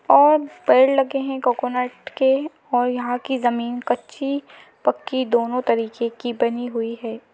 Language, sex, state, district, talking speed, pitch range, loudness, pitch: Hindi, female, Madhya Pradesh, Bhopal, 155 wpm, 240-270 Hz, -21 LUFS, 250 Hz